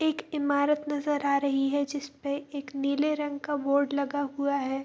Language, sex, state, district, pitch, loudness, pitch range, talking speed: Hindi, female, Bihar, Bhagalpur, 285 Hz, -29 LUFS, 280-290 Hz, 185 wpm